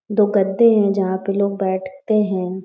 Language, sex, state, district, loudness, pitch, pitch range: Hindi, female, Bihar, Gaya, -18 LUFS, 200 Hz, 190-210 Hz